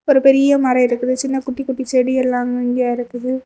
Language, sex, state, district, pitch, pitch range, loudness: Tamil, female, Tamil Nadu, Kanyakumari, 255 Hz, 245-270 Hz, -17 LUFS